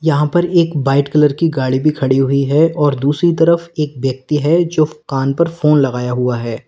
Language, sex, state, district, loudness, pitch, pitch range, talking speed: Hindi, male, Uttar Pradesh, Lalitpur, -15 LUFS, 150 Hz, 135-165 Hz, 215 wpm